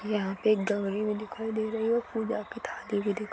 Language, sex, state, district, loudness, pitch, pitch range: Hindi, female, Chhattisgarh, Rajnandgaon, -30 LUFS, 215 Hz, 205-220 Hz